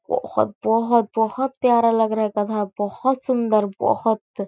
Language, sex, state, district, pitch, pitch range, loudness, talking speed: Hindi, female, Chhattisgarh, Korba, 225 Hz, 210-245 Hz, -21 LUFS, 160 wpm